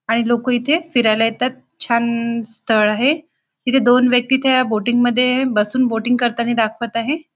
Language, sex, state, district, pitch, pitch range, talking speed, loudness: Marathi, female, Maharashtra, Nagpur, 245 Hz, 230-255 Hz, 155 wpm, -17 LUFS